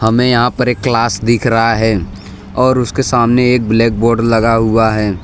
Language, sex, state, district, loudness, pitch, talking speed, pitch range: Hindi, male, Gujarat, Valsad, -12 LUFS, 115 Hz, 195 wpm, 110-125 Hz